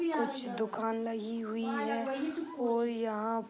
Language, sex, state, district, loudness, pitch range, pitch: Hindi, female, Bihar, East Champaran, -34 LUFS, 225-250 Hz, 230 Hz